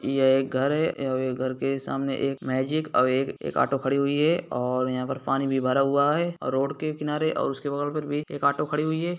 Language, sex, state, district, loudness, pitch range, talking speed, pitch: Hindi, male, Bihar, East Champaran, -25 LUFS, 130-150 Hz, 250 wpm, 135 Hz